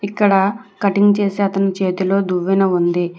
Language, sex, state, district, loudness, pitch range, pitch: Telugu, female, Telangana, Hyderabad, -17 LUFS, 185-200 Hz, 195 Hz